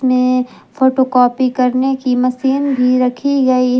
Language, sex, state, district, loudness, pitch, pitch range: Hindi, female, Jharkhand, Garhwa, -14 LUFS, 255 Hz, 250-265 Hz